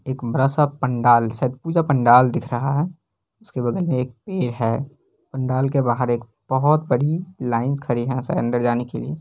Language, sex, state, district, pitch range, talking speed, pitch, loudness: Hindi, male, Bihar, Lakhisarai, 120-145 Hz, 190 wpm, 130 Hz, -21 LUFS